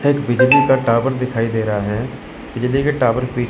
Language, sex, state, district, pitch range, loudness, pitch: Hindi, male, Chandigarh, Chandigarh, 115-135 Hz, -17 LUFS, 125 Hz